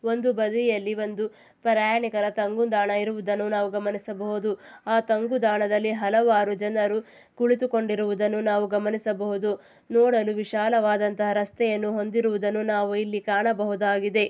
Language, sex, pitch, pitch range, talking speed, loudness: Kannada, female, 210 Hz, 205-220 Hz, 100 wpm, -25 LUFS